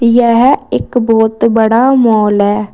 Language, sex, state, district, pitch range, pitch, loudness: Hindi, female, Uttar Pradesh, Saharanpur, 220-240 Hz, 230 Hz, -10 LUFS